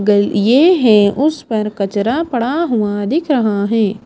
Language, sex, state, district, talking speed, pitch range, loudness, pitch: Hindi, female, Himachal Pradesh, Shimla, 165 wpm, 205-280 Hz, -14 LUFS, 220 Hz